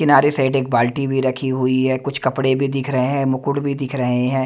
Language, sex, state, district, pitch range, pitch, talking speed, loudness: Hindi, male, Himachal Pradesh, Shimla, 130-140 Hz, 135 Hz, 255 wpm, -19 LUFS